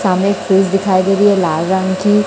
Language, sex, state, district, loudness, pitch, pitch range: Hindi, male, Chhattisgarh, Raipur, -13 LUFS, 190 Hz, 185-200 Hz